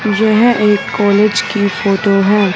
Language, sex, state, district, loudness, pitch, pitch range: Hindi, male, Punjab, Fazilka, -12 LUFS, 205 Hz, 200-215 Hz